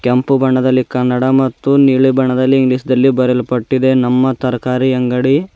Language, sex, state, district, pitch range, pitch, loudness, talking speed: Kannada, male, Karnataka, Bidar, 125-135 Hz, 130 Hz, -13 LUFS, 120 wpm